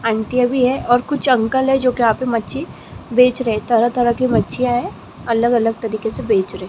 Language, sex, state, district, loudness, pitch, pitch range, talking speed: Hindi, female, Maharashtra, Gondia, -17 LUFS, 240 Hz, 225-255 Hz, 215 wpm